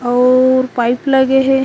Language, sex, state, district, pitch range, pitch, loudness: Chhattisgarhi, female, Chhattisgarh, Korba, 250-265 Hz, 255 Hz, -13 LUFS